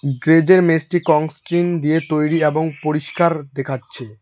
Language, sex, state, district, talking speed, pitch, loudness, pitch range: Bengali, male, West Bengal, Alipurduar, 130 wpm, 155 Hz, -17 LUFS, 150-165 Hz